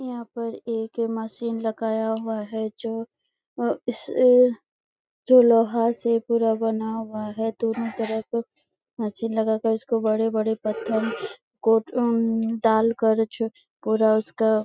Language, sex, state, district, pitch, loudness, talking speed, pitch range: Hindi, female, Chhattisgarh, Bastar, 225 Hz, -23 LUFS, 125 wpm, 220-230 Hz